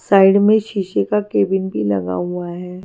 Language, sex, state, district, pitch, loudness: Hindi, female, Haryana, Charkhi Dadri, 175 Hz, -17 LUFS